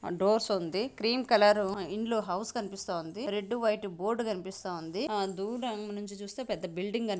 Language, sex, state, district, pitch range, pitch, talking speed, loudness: Telugu, female, Andhra Pradesh, Anantapur, 195-220 Hz, 205 Hz, 115 wpm, -32 LUFS